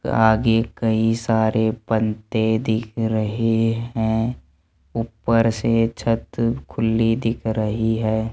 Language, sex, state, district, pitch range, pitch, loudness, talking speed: Hindi, male, Rajasthan, Jaipur, 110-115 Hz, 110 Hz, -21 LUFS, 100 wpm